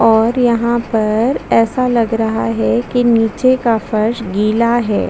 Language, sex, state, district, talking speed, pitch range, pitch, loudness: Hindi, female, Chhattisgarh, Bastar, 155 wpm, 215-240 Hz, 230 Hz, -14 LUFS